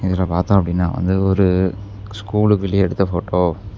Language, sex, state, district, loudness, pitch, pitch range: Tamil, male, Tamil Nadu, Namakkal, -18 LUFS, 95 Hz, 90-100 Hz